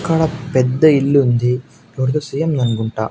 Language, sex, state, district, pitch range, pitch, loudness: Telugu, male, Andhra Pradesh, Annamaya, 125-155 Hz, 135 Hz, -16 LUFS